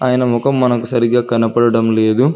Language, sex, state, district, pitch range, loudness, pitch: Telugu, male, Telangana, Hyderabad, 115-125 Hz, -14 LUFS, 120 Hz